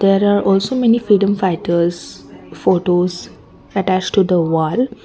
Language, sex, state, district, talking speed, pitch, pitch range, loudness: English, female, Assam, Kamrup Metropolitan, 130 wpm, 190 Hz, 175-205 Hz, -16 LUFS